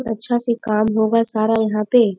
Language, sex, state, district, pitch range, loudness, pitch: Hindi, female, Bihar, Bhagalpur, 215-230 Hz, -18 LUFS, 225 Hz